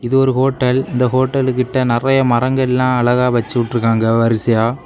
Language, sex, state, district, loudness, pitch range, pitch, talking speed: Tamil, male, Tamil Nadu, Kanyakumari, -15 LUFS, 120-130 Hz, 125 Hz, 135 wpm